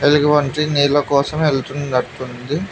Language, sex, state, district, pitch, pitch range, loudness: Telugu, male, Telangana, Mahabubabad, 145 Hz, 140-150 Hz, -17 LUFS